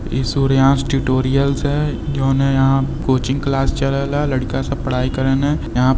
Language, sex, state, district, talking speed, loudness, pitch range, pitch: Hindi, male, Uttar Pradesh, Varanasi, 160 wpm, -17 LUFS, 130-140 Hz, 135 Hz